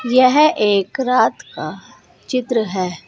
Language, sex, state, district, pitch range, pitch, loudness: Hindi, female, Uttar Pradesh, Saharanpur, 200-255 Hz, 250 Hz, -16 LUFS